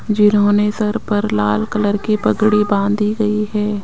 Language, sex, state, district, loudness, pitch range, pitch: Hindi, female, Rajasthan, Jaipur, -16 LUFS, 205-210 Hz, 210 Hz